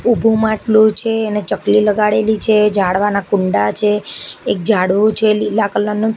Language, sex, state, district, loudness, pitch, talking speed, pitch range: Gujarati, female, Gujarat, Gandhinagar, -14 LUFS, 210 Hz, 155 wpm, 205-220 Hz